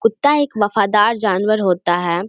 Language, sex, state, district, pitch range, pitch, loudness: Hindi, female, Bihar, Samastipur, 185-225 Hz, 210 Hz, -16 LUFS